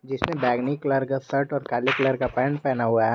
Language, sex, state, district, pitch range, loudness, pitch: Hindi, male, Jharkhand, Garhwa, 125-140 Hz, -24 LUFS, 135 Hz